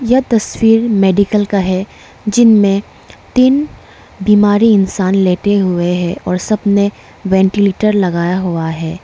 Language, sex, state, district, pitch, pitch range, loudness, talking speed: Hindi, female, Arunachal Pradesh, Lower Dibang Valley, 200 Hz, 185-215 Hz, -13 LUFS, 125 wpm